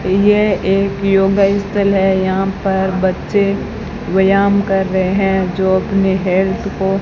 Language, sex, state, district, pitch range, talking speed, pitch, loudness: Hindi, female, Rajasthan, Bikaner, 190-200 Hz, 135 wpm, 195 Hz, -15 LUFS